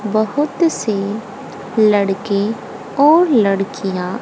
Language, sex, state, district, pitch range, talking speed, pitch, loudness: Hindi, female, Haryana, Jhajjar, 200-270 Hz, 70 wpm, 215 Hz, -16 LUFS